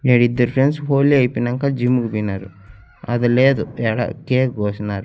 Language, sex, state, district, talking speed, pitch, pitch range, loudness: Telugu, male, Andhra Pradesh, Annamaya, 145 wpm, 120 Hz, 105-130 Hz, -18 LUFS